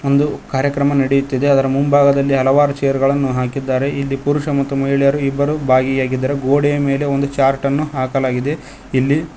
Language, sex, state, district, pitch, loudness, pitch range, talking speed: Kannada, male, Karnataka, Koppal, 140 Hz, -16 LUFS, 135-140 Hz, 135 wpm